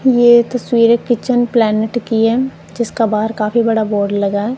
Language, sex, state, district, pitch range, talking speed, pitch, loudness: Hindi, male, Punjab, Kapurthala, 215-240 Hz, 170 wpm, 230 Hz, -14 LUFS